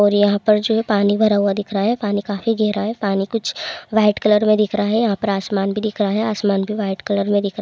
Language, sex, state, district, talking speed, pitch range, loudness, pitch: Hindi, female, Bihar, Bhagalpur, 290 wpm, 200-215 Hz, -18 LUFS, 205 Hz